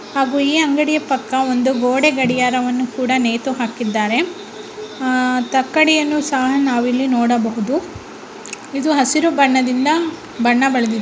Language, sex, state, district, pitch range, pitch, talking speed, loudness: Kannada, female, Karnataka, Raichur, 250-290 Hz, 260 Hz, 100 wpm, -16 LUFS